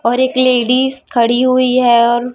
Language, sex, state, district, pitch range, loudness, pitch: Hindi, female, Chhattisgarh, Raipur, 240-255 Hz, -12 LUFS, 250 Hz